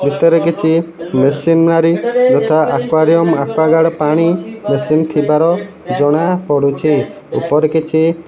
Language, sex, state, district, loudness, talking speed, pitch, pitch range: Odia, male, Odisha, Malkangiri, -13 LUFS, 95 wpm, 160 Hz, 150-165 Hz